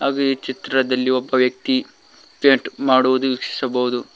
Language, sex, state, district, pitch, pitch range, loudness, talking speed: Kannada, male, Karnataka, Koppal, 130 Hz, 130-135 Hz, -19 LUFS, 100 wpm